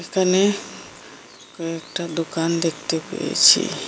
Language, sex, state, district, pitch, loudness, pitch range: Bengali, female, Assam, Hailakandi, 165 Hz, -20 LUFS, 165-185 Hz